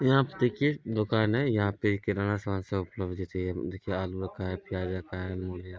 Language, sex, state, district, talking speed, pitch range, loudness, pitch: Hindi, male, Bihar, East Champaran, 185 wpm, 95-110 Hz, -30 LUFS, 95 Hz